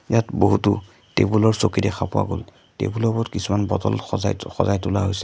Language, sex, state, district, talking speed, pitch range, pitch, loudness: Assamese, male, Assam, Sonitpur, 195 wpm, 95-110 Hz, 100 Hz, -22 LUFS